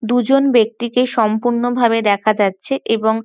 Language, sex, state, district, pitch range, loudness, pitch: Bengali, female, West Bengal, North 24 Parganas, 220-245 Hz, -16 LUFS, 235 Hz